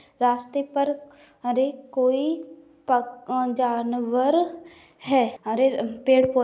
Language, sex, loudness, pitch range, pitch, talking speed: Maithili, female, -24 LUFS, 245-290 Hz, 260 Hz, 100 wpm